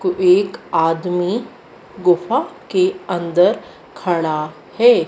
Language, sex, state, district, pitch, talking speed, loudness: Hindi, female, Madhya Pradesh, Dhar, 180 Hz, 95 wpm, -18 LUFS